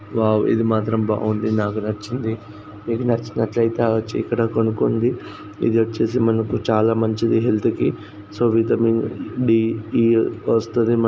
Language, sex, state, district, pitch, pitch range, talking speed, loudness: Telugu, male, Andhra Pradesh, Srikakulam, 115 Hz, 110-115 Hz, 110 wpm, -20 LUFS